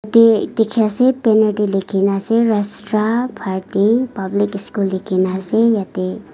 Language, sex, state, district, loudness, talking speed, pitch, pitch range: Nagamese, female, Nagaland, Kohima, -17 LUFS, 125 wpm, 210 Hz, 195-225 Hz